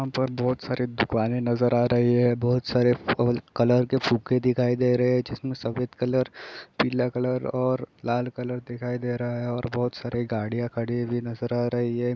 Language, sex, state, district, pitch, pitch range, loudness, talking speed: Hindi, male, Bihar, East Champaran, 120 Hz, 120-125 Hz, -25 LUFS, 195 wpm